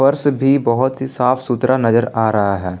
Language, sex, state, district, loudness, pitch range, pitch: Hindi, male, Jharkhand, Palamu, -16 LUFS, 115-135 Hz, 125 Hz